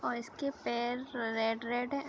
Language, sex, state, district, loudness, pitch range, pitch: Hindi, female, Uttar Pradesh, Deoria, -35 LUFS, 235-260 Hz, 240 Hz